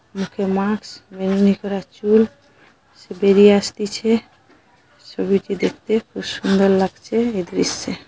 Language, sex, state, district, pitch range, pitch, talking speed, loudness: Bengali, female, West Bengal, Paschim Medinipur, 195-215 Hz, 200 Hz, 120 wpm, -19 LUFS